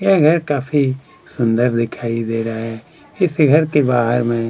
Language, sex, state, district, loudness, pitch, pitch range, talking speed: Hindi, male, Chhattisgarh, Kabirdham, -17 LUFS, 125 Hz, 115-150 Hz, 175 wpm